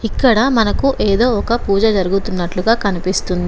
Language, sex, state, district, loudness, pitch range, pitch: Telugu, female, Telangana, Komaram Bheem, -15 LUFS, 190-230 Hz, 205 Hz